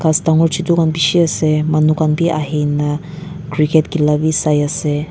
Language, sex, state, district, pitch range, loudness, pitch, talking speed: Nagamese, female, Nagaland, Dimapur, 150-160 Hz, -15 LUFS, 155 Hz, 165 wpm